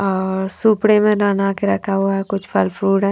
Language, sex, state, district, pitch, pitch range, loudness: Hindi, female, Haryana, Charkhi Dadri, 195 Hz, 195-205 Hz, -17 LUFS